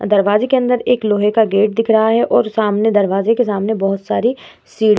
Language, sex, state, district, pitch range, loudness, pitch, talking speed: Hindi, female, Bihar, Vaishali, 205-230 Hz, -15 LUFS, 215 Hz, 230 wpm